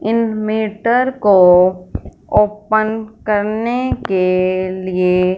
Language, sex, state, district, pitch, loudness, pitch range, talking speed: Hindi, female, Punjab, Fazilka, 210 Hz, -15 LUFS, 185-220 Hz, 65 wpm